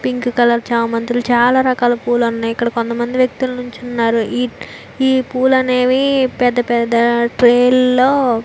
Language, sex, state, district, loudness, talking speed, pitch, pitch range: Telugu, female, Andhra Pradesh, Visakhapatnam, -15 LUFS, 150 wpm, 245 Hz, 235-255 Hz